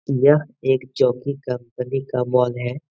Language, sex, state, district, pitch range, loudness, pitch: Hindi, male, Bihar, Jahanabad, 125-140 Hz, -21 LUFS, 130 Hz